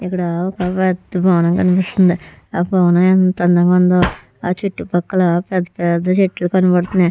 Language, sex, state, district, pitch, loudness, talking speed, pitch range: Telugu, female, Andhra Pradesh, Chittoor, 180 Hz, -15 LUFS, 135 wpm, 175-185 Hz